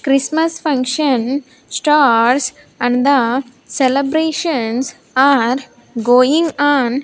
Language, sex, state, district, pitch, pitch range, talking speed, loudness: English, female, Andhra Pradesh, Sri Satya Sai, 270 Hz, 250-290 Hz, 75 wpm, -15 LUFS